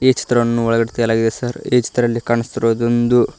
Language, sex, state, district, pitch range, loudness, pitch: Kannada, male, Karnataka, Koppal, 115-120 Hz, -17 LUFS, 120 Hz